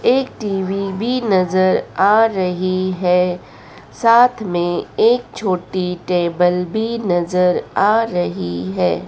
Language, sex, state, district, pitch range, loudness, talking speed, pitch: Hindi, female, Madhya Pradesh, Dhar, 175-215 Hz, -17 LUFS, 110 wpm, 185 Hz